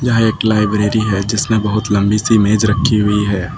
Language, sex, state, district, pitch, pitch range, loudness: Hindi, male, Uttar Pradesh, Lucknow, 105 Hz, 105-110 Hz, -14 LUFS